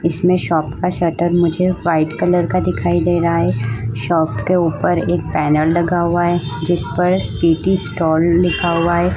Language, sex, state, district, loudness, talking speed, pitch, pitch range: Hindi, female, Uttar Pradesh, Budaun, -16 LUFS, 185 wpm, 170 Hz, 160-175 Hz